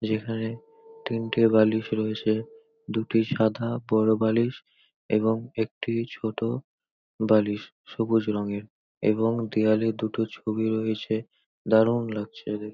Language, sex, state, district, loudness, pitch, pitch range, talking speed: Bengali, male, West Bengal, North 24 Parganas, -26 LUFS, 110 Hz, 110-115 Hz, 105 wpm